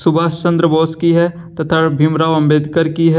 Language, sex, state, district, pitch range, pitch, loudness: Hindi, male, Jharkhand, Deoghar, 160-170 Hz, 165 Hz, -14 LUFS